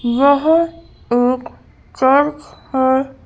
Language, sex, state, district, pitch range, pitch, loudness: Hindi, female, Madhya Pradesh, Bhopal, 255-295 Hz, 270 Hz, -16 LUFS